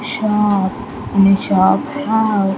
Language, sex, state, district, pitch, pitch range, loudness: English, female, Andhra Pradesh, Sri Satya Sai, 205 Hz, 195-220 Hz, -15 LUFS